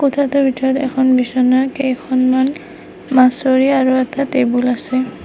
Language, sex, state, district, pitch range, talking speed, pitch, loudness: Assamese, female, Assam, Kamrup Metropolitan, 255-270 Hz, 105 wpm, 260 Hz, -15 LUFS